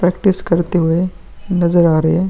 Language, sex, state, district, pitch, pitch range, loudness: Hindi, male, Bihar, Vaishali, 175 Hz, 170-185 Hz, -15 LUFS